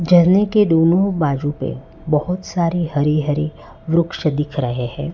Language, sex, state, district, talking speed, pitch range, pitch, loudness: Hindi, male, Gujarat, Valsad, 150 wpm, 145-170 Hz, 155 Hz, -18 LUFS